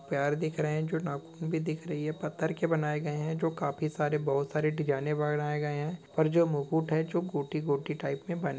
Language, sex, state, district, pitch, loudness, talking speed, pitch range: Hindi, male, Bihar, Araria, 155 Hz, -31 LUFS, 235 wpm, 150-160 Hz